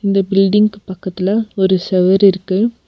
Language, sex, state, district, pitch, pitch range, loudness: Tamil, female, Tamil Nadu, Nilgiris, 195 Hz, 190-205 Hz, -14 LUFS